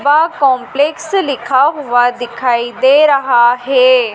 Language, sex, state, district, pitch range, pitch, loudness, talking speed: Hindi, female, Madhya Pradesh, Dhar, 245-285 Hz, 260 Hz, -12 LUFS, 115 wpm